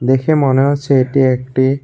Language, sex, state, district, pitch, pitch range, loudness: Bengali, male, Tripura, West Tripura, 135 Hz, 130-140 Hz, -14 LUFS